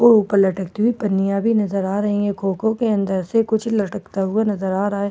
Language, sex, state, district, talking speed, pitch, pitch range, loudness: Hindi, female, Bihar, Katihar, 200 wpm, 205 Hz, 195-220 Hz, -19 LUFS